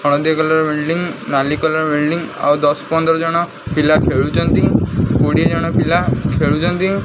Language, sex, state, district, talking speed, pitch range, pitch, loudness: Odia, male, Odisha, Khordha, 135 wpm, 150-165 Hz, 155 Hz, -15 LUFS